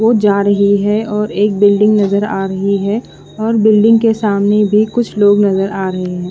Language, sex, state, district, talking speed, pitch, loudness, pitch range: Hindi, female, Odisha, Khordha, 210 wpm, 205 Hz, -13 LUFS, 200-215 Hz